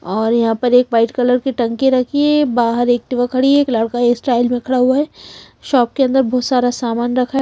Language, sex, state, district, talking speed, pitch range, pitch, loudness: Hindi, female, Haryana, Charkhi Dadri, 240 wpm, 240-265 Hz, 245 Hz, -15 LUFS